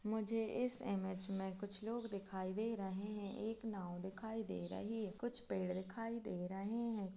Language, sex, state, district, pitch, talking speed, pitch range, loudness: Hindi, female, Chhattisgarh, Kabirdham, 205 Hz, 175 wpm, 190-225 Hz, -44 LUFS